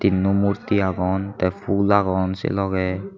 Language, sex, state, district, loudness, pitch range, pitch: Chakma, male, Tripura, Unakoti, -21 LUFS, 95-100 Hz, 95 Hz